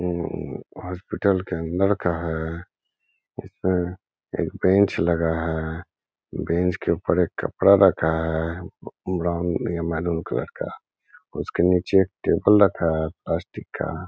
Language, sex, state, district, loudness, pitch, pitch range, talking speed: Hindi, male, Bihar, Gaya, -23 LUFS, 85 Hz, 80-95 Hz, 130 wpm